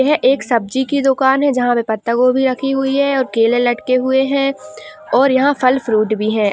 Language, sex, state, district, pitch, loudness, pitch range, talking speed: Hindi, female, Uttar Pradesh, Gorakhpur, 260 Hz, -15 LUFS, 235-270 Hz, 210 wpm